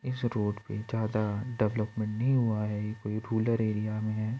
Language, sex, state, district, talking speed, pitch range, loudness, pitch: Hindi, male, Uttar Pradesh, Budaun, 175 wpm, 105-115 Hz, -31 LUFS, 110 Hz